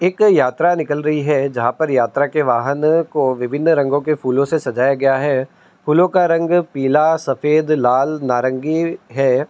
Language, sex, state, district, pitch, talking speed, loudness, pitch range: Hindi, male, Uttar Pradesh, Budaun, 150 Hz, 170 wpm, -16 LUFS, 135-160 Hz